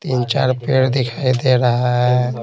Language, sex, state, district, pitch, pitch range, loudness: Hindi, male, Bihar, Patna, 125 Hz, 125-130 Hz, -17 LUFS